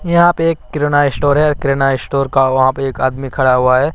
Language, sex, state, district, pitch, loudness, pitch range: Hindi, male, Bihar, Katihar, 135 Hz, -14 LUFS, 130-150 Hz